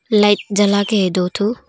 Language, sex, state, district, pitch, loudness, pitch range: Hindi, female, Arunachal Pradesh, Longding, 205 Hz, -16 LUFS, 200-210 Hz